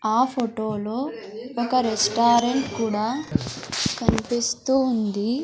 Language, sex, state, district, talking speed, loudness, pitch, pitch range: Telugu, male, Andhra Pradesh, Sri Satya Sai, 90 wpm, -23 LUFS, 235 Hz, 220-250 Hz